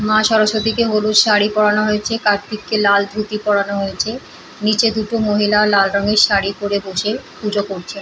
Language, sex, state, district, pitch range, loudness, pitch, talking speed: Bengali, female, West Bengal, Paschim Medinipur, 200-215 Hz, -16 LUFS, 210 Hz, 155 wpm